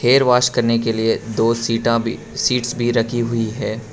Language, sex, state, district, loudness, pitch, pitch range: Hindi, male, Arunachal Pradesh, Lower Dibang Valley, -18 LUFS, 115 Hz, 115-120 Hz